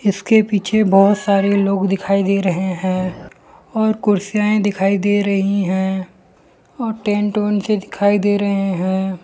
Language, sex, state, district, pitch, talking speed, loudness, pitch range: Hindi, male, Gujarat, Valsad, 200 Hz, 145 wpm, -17 LUFS, 190-205 Hz